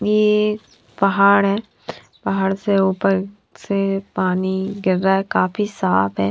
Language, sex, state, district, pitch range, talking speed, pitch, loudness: Hindi, female, Himachal Pradesh, Shimla, 190-205 Hz, 145 wpm, 195 Hz, -19 LUFS